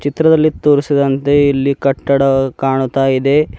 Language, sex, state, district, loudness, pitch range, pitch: Kannada, male, Karnataka, Bidar, -13 LUFS, 135-145 Hz, 140 Hz